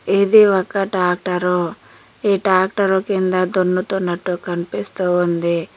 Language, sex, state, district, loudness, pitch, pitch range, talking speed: Telugu, female, Telangana, Mahabubabad, -18 LUFS, 185 Hz, 180-195 Hz, 95 wpm